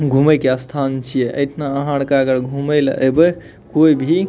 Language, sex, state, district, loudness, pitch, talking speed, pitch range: Maithili, male, Bihar, Madhepura, -16 LUFS, 140 Hz, 195 wpm, 130-150 Hz